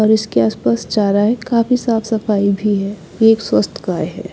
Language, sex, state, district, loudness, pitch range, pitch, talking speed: Hindi, female, Bihar, Patna, -16 LUFS, 195-225 Hz, 210 Hz, 205 wpm